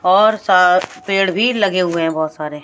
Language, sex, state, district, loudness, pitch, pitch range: Hindi, female, Bihar, West Champaran, -15 LUFS, 185 Hz, 165-205 Hz